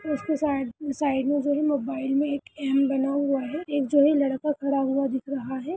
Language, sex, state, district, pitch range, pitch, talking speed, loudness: Hindi, female, Bihar, Jahanabad, 270-290 Hz, 280 Hz, 230 wpm, -25 LUFS